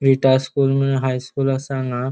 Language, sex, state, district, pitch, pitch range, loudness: Konkani, male, Goa, North and South Goa, 135 Hz, 130-135 Hz, -19 LUFS